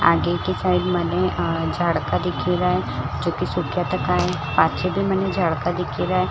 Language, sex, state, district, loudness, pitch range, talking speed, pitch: Marwari, female, Rajasthan, Churu, -22 LUFS, 115-180 Hz, 190 wpm, 175 Hz